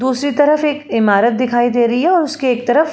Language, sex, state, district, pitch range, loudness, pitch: Hindi, female, Uttar Pradesh, Jalaun, 240-295 Hz, -14 LUFS, 260 Hz